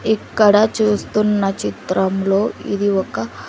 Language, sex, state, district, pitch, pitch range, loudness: Telugu, female, Andhra Pradesh, Sri Satya Sai, 200 Hz, 190-210 Hz, -17 LUFS